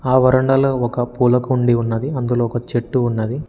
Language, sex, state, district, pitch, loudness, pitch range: Telugu, male, Telangana, Mahabubabad, 125 Hz, -17 LUFS, 120-130 Hz